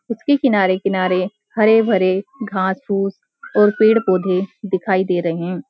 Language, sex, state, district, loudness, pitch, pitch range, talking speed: Hindi, female, Uttarakhand, Uttarkashi, -17 LUFS, 195 Hz, 185-220 Hz, 105 wpm